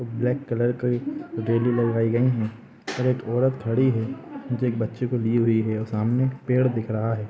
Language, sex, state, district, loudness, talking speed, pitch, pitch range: Hindi, male, Bihar, Gopalganj, -24 LUFS, 180 wpm, 120 Hz, 115-125 Hz